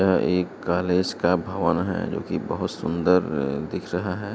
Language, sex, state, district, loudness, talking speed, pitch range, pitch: Hindi, male, Uttar Pradesh, Gorakhpur, -24 LUFS, 165 wpm, 85-95 Hz, 90 Hz